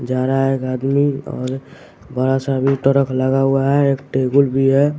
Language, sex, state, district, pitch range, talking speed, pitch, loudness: Hindi, male, Bihar, West Champaran, 130-140 Hz, 205 wpm, 135 Hz, -17 LUFS